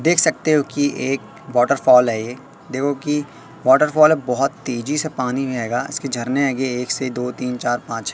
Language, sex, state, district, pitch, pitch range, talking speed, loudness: Hindi, male, Madhya Pradesh, Katni, 135 Hz, 125-145 Hz, 175 wpm, -19 LUFS